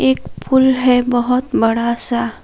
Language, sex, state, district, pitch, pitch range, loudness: Hindi, female, Jharkhand, Palamu, 240 Hz, 230-255 Hz, -15 LUFS